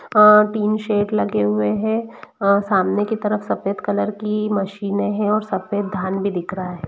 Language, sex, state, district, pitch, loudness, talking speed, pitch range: Hindi, female, Bihar, East Champaran, 205 Hz, -19 LUFS, 185 wpm, 190-210 Hz